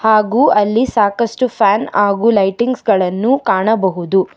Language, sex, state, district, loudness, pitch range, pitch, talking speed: Kannada, female, Karnataka, Bangalore, -14 LUFS, 195-235 Hz, 215 Hz, 110 wpm